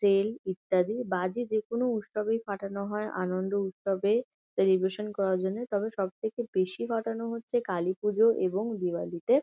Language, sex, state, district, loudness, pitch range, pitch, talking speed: Bengali, female, West Bengal, Kolkata, -30 LUFS, 190-225 Hz, 205 Hz, 135 wpm